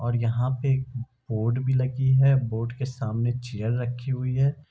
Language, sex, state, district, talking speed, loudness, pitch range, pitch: Hindi, male, Bihar, Darbhanga, 180 wpm, -25 LUFS, 120-130 Hz, 125 Hz